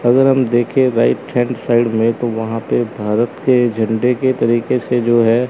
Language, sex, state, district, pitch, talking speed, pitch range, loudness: Hindi, male, Chandigarh, Chandigarh, 120 Hz, 195 wpm, 115-125 Hz, -15 LUFS